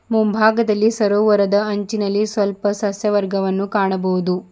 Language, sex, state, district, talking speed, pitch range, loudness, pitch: Kannada, female, Karnataka, Bidar, 80 wpm, 195-215 Hz, -18 LUFS, 205 Hz